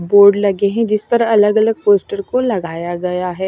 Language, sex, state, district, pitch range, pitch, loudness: Hindi, female, Maharashtra, Washim, 180-215 Hz, 200 Hz, -15 LUFS